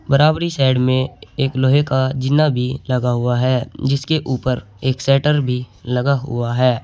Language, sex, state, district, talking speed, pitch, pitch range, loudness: Hindi, male, Uttar Pradesh, Saharanpur, 165 wpm, 130 Hz, 125-140 Hz, -18 LUFS